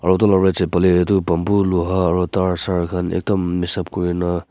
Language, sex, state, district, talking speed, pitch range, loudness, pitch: Nagamese, male, Nagaland, Kohima, 200 wpm, 90-95 Hz, -18 LUFS, 90 Hz